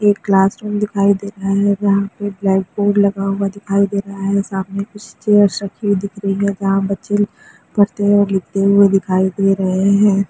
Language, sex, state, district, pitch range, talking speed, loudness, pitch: Hindi, female, Chhattisgarh, Raigarh, 195-205 Hz, 200 wpm, -16 LUFS, 200 Hz